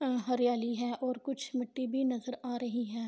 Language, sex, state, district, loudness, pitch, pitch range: Urdu, female, Andhra Pradesh, Anantapur, -34 LUFS, 250 Hz, 240-255 Hz